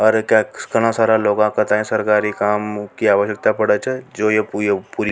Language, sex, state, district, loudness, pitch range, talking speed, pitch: Rajasthani, male, Rajasthan, Nagaur, -17 LUFS, 105-110 Hz, 165 wpm, 105 Hz